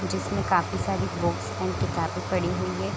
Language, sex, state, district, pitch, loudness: Hindi, female, Bihar, Sitamarhi, 95 Hz, -27 LUFS